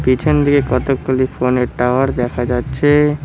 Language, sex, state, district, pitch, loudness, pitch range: Bengali, male, West Bengal, Cooch Behar, 130 Hz, -15 LUFS, 125-145 Hz